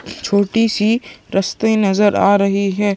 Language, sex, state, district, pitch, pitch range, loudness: Hindi, male, Chhattisgarh, Sukma, 205 Hz, 200-220 Hz, -16 LUFS